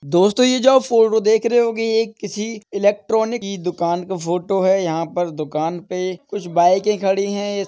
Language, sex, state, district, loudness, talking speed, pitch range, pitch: Hindi, male, Uttar Pradesh, Etah, -18 LUFS, 195 wpm, 180-220 Hz, 200 Hz